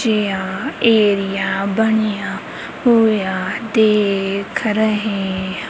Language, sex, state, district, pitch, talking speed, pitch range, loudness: Punjabi, female, Punjab, Kapurthala, 210 Hz, 65 wpm, 195-220 Hz, -17 LUFS